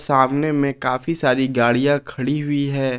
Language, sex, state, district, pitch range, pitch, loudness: Hindi, male, Jharkhand, Ranchi, 130-145 Hz, 135 Hz, -19 LUFS